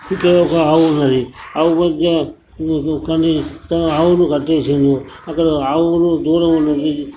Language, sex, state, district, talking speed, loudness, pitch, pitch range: Telugu, male, Telangana, Nalgonda, 100 wpm, -15 LUFS, 160 Hz, 150-165 Hz